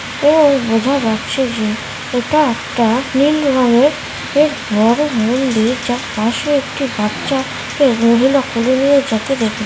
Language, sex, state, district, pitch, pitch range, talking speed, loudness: Bengali, male, West Bengal, Kolkata, 255 Hz, 230-280 Hz, 120 wpm, -15 LUFS